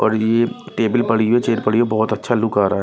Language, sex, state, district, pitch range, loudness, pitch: Hindi, male, Bihar, Patna, 110-120 Hz, -18 LUFS, 115 Hz